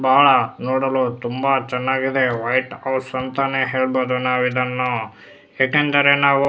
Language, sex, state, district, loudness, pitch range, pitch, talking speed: Kannada, male, Karnataka, Bellary, -19 LUFS, 125-135 Hz, 130 Hz, 120 wpm